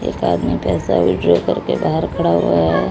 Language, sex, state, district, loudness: Hindi, female, Odisha, Malkangiri, -17 LUFS